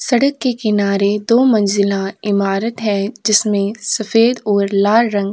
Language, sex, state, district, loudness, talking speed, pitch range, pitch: Hindi, female, Uttar Pradesh, Jyotiba Phule Nagar, -15 LUFS, 145 wpm, 200-230 Hz, 210 Hz